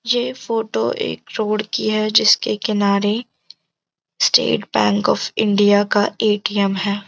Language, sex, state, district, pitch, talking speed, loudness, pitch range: Hindi, female, Uttarakhand, Uttarkashi, 210 Hz, 125 wpm, -18 LUFS, 200-220 Hz